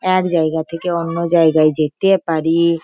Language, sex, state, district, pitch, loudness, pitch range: Bengali, female, West Bengal, Purulia, 165 Hz, -16 LUFS, 160-175 Hz